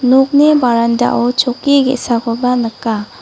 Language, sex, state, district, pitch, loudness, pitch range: Garo, female, Meghalaya, West Garo Hills, 250 Hz, -13 LUFS, 235-265 Hz